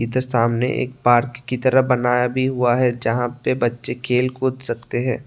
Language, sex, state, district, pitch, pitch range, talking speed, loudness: Hindi, male, Tripura, West Tripura, 125 Hz, 120-130 Hz, 195 wpm, -20 LUFS